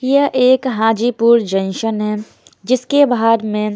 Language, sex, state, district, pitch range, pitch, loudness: Hindi, female, Himachal Pradesh, Shimla, 210-255 Hz, 230 Hz, -15 LUFS